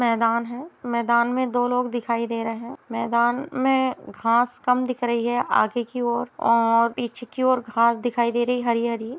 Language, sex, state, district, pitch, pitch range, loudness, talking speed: Hindi, female, Bihar, Sitamarhi, 240 Hz, 235-250 Hz, -23 LUFS, 195 wpm